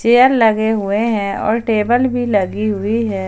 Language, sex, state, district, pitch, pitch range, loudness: Hindi, male, Jharkhand, Ranchi, 220 Hz, 205-235 Hz, -15 LUFS